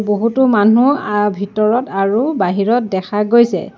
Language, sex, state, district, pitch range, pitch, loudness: Assamese, female, Assam, Sonitpur, 200-235 Hz, 210 Hz, -14 LUFS